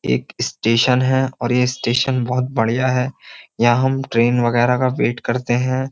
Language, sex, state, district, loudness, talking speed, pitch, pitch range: Hindi, male, Uttar Pradesh, Jyotiba Phule Nagar, -18 LUFS, 170 wpm, 125 Hz, 120-130 Hz